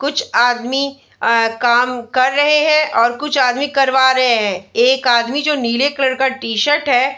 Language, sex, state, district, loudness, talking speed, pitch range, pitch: Hindi, female, Bihar, Darbhanga, -15 LUFS, 175 wpm, 240-285 Hz, 260 Hz